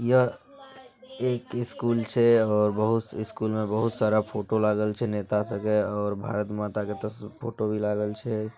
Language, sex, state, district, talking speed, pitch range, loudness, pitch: Hindi, male, Bihar, Bhagalpur, 170 wpm, 105-120 Hz, -26 LUFS, 110 Hz